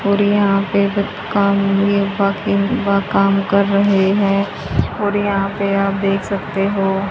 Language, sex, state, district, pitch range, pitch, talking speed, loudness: Hindi, female, Haryana, Charkhi Dadri, 195-200 Hz, 200 Hz, 120 wpm, -16 LUFS